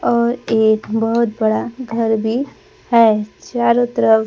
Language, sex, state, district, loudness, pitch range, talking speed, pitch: Hindi, female, Bihar, Kaimur, -16 LUFS, 220-235 Hz, 125 wpm, 225 Hz